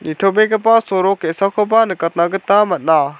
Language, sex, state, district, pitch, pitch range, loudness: Garo, male, Meghalaya, South Garo Hills, 195 Hz, 165-210 Hz, -15 LUFS